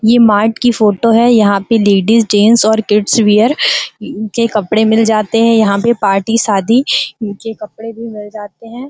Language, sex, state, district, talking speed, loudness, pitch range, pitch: Hindi, female, Uttar Pradesh, Gorakhpur, 180 wpm, -11 LUFS, 210-230 Hz, 220 Hz